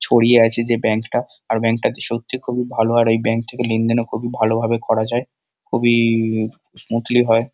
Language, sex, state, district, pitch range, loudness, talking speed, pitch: Bengali, male, West Bengal, Kolkata, 115-120 Hz, -18 LUFS, 175 wpm, 115 Hz